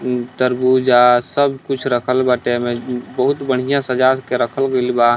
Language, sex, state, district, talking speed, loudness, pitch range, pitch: Bhojpuri, male, Bihar, East Champaran, 175 wpm, -16 LUFS, 120-130 Hz, 125 Hz